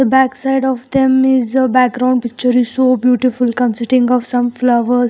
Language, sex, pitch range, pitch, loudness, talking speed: English, female, 245-260 Hz, 250 Hz, -14 LUFS, 165 wpm